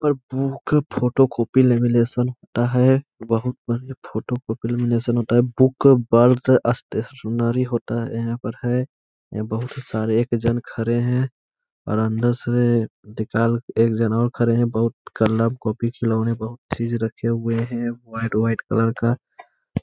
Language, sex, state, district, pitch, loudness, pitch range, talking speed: Hindi, male, Bihar, Gaya, 120 Hz, -21 LUFS, 115-125 Hz, 150 wpm